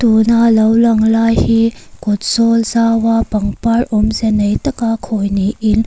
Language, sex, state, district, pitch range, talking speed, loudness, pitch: Mizo, female, Mizoram, Aizawl, 215-230 Hz, 165 wpm, -13 LUFS, 225 Hz